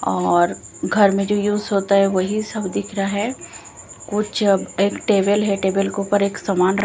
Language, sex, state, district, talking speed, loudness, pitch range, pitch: Hindi, female, Bihar, Katihar, 195 wpm, -19 LUFS, 195-205 Hz, 200 Hz